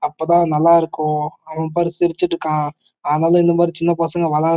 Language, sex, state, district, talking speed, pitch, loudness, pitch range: Tamil, male, Karnataka, Chamarajanagar, 170 wpm, 165 Hz, -17 LUFS, 155-170 Hz